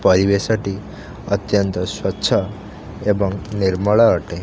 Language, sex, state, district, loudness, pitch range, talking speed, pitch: Odia, male, Odisha, Khordha, -18 LUFS, 95-105 Hz, 95 wpm, 100 Hz